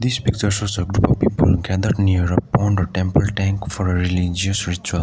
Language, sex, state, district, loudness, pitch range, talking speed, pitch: English, male, Sikkim, Gangtok, -19 LUFS, 90-105 Hz, 215 wpm, 95 Hz